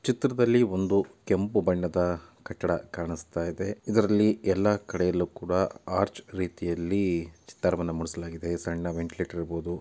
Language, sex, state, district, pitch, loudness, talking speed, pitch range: Kannada, male, Karnataka, Dakshina Kannada, 90 Hz, -28 LUFS, 110 wpm, 85-100 Hz